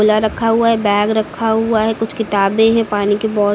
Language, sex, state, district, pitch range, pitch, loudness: Hindi, female, Uttar Pradesh, Lucknow, 205-225 Hz, 220 Hz, -15 LUFS